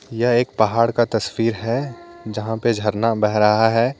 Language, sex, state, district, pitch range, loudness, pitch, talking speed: Hindi, male, Jharkhand, Deoghar, 110-120 Hz, -19 LUFS, 115 Hz, 180 wpm